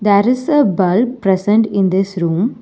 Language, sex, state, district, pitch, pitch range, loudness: English, female, Telangana, Hyderabad, 205 Hz, 190-240 Hz, -14 LUFS